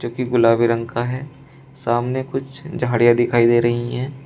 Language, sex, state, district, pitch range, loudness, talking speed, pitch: Hindi, male, Uttar Pradesh, Shamli, 120-135 Hz, -19 LUFS, 185 wpm, 120 Hz